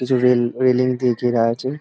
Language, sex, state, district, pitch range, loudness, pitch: Bengali, male, West Bengal, Dakshin Dinajpur, 120-130 Hz, -18 LUFS, 125 Hz